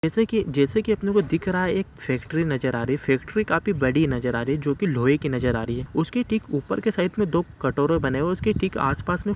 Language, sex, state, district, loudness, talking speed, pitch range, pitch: Hindi, male, Uttar Pradesh, Ghazipur, -24 LUFS, 280 wpm, 135-200 Hz, 160 Hz